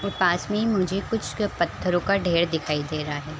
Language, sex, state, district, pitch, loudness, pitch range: Hindi, female, Chhattisgarh, Raigarh, 180 Hz, -24 LUFS, 155-200 Hz